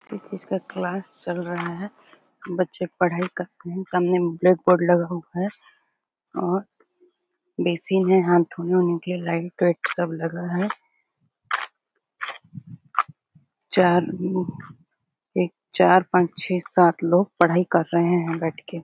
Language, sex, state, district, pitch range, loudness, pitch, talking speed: Hindi, female, Chhattisgarh, Bastar, 175-185 Hz, -22 LUFS, 180 Hz, 135 wpm